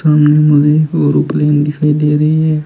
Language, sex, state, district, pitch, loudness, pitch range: Hindi, male, Rajasthan, Bikaner, 150 Hz, -11 LUFS, 150-155 Hz